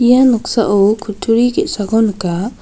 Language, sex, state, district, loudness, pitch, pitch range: Garo, female, Meghalaya, South Garo Hills, -14 LUFS, 220 Hz, 205-240 Hz